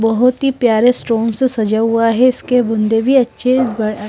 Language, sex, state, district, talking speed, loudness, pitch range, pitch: Hindi, female, Himachal Pradesh, Shimla, 205 wpm, -14 LUFS, 225-255 Hz, 230 Hz